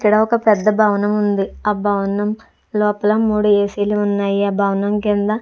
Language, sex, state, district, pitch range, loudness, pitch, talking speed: Telugu, female, Andhra Pradesh, Chittoor, 200-210 Hz, -17 LUFS, 210 Hz, 165 wpm